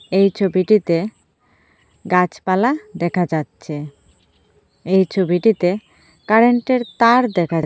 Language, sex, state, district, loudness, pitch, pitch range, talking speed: Bengali, female, Assam, Hailakandi, -17 LUFS, 185 Hz, 170-215 Hz, 80 wpm